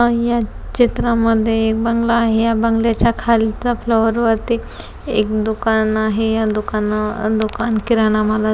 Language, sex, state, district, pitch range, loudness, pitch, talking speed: Marathi, female, Maharashtra, Pune, 215-230 Hz, -17 LUFS, 225 Hz, 140 wpm